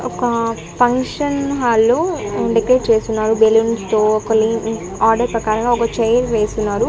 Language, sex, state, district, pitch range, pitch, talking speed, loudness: Telugu, female, Andhra Pradesh, Annamaya, 220-245 Hz, 225 Hz, 120 wpm, -16 LUFS